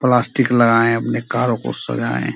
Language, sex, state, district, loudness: Hindi, male, Bihar, Araria, -17 LUFS